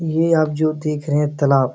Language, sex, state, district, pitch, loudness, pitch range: Hindi, male, Bihar, Supaul, 150 Hz, -18 LUFS, 145-155 Hz